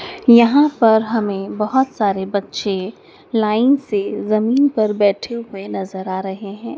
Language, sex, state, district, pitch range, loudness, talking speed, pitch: Hindi, female, Madhya Pradesh, Dhar, 200-235 Hz, -17 LUFS, 140 wpm, 215 Hz